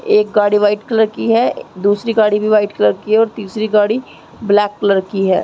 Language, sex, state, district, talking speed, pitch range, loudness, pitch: Hindi, female, Chhattisgarh, Raigarh, 220 wpm, 205-220 Hz, -15 LUFS, 210 Hz